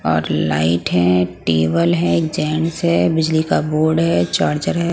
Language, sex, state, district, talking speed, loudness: Hindi, female, Punjab, Pathankot, 170 wpm, -17 LUFS